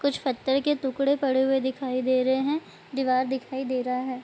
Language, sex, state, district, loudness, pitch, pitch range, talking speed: Hindi, female, Bihar, Sitamarhi, -26 LUFS, 265 Hz, 255-270 Hz, 225 wpm